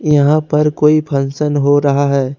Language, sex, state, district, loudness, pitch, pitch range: Hindi, male, Jharkhand, Ranchi, -13 LUFS, 145 Hz, 140-150 Hz